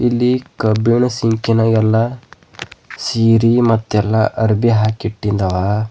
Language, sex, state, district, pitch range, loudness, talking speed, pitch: Kannada, male, Karnataka, Bidar, 110-120 Hz, -15 LUFS, 80 wpm, 115 Hz